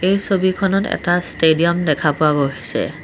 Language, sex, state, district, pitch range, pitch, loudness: Assamese, male, Assam, Sonitpur, 155-190 Hz, 175 Hz, -17 LUFS